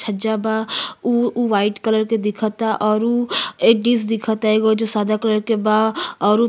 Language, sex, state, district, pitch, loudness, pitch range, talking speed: Bhojpuri, female, Uttar Pradesh, Ghazipur, 220 Hz, -18 LUFS, 215-225 Hz, 195 wpm